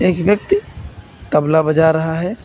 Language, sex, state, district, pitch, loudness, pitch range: Hindi, male, Uttar Pradesh, Lucknow, 160 Hz, -16 LUFS, 160-200 Hz